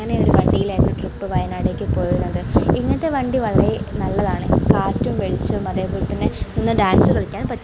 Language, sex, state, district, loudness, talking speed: Malayalam, female, Kerala, Kozhikode, -19 LUFS, 140 wpm